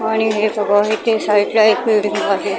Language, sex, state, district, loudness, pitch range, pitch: Marathi, female, Maharashtra, Mumbai Suburban, -16 LUFS, 205-220 Hz, 215 Hz